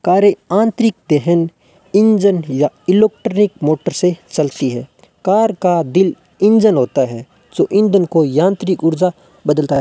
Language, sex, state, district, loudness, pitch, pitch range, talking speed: Hindi, male, Rajasthan, Bikaner, -15 LUFS, 180 Hz, 155-205 Hz, 140 wpm